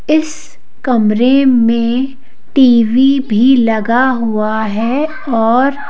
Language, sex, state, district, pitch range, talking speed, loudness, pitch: Hindi, female, Madhya Pradesh, Bhopal, 230-270 Hz, 90 wpm, -12 LUFS, 250 Hz